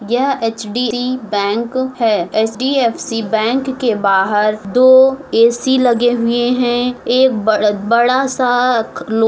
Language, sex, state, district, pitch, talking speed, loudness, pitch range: Hindi, female, Uttar Pradesh, Muzaffarnagar, 240 Hz, 115 wpm, -14 LUFS, 225-255 Hz